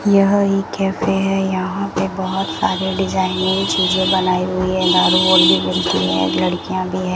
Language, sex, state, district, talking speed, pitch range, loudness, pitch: Hindi, female, Rajasthan, Bikaner, 175 wpm, 185-195 Hz, -16 LUFS, 190 Hz